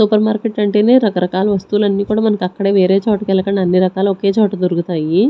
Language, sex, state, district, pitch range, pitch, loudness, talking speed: Telugu, female, Andhra Pradesh, Sri Satya Sai, 185-215 Hz, 200 Hz, -15 LUFS, 180 wpm